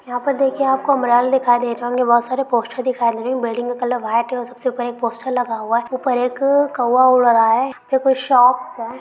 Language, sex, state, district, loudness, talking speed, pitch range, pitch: Hindi, female, West Bengal, Kolkata, -17 LUFS, 245 wpm, 240-260 Hz, 245 Hz